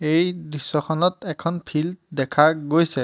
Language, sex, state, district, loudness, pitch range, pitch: Assamese, male, Assam, Hailakandi, -22 LUFS, 150-170 Hz, 160 Hz